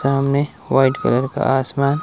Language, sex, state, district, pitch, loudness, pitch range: Hindi, male, Himachal Pradesh, Shimla, 135 Hz, -18 LUFS, 135-140 Hz